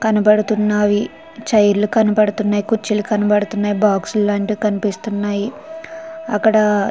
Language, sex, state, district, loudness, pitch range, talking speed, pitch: Telugu, female, Andhra Pradesh, Chittoor, -17 LUFS, 205-220 Hz, 95 wpm, 210 Hz